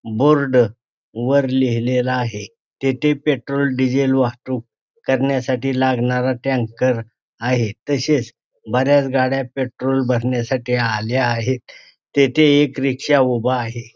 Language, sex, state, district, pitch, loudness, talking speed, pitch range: Marathi, male, Maharashtra, Pune, 130 Hz, -18 LUFS, 105 wpm, 120-135 Hz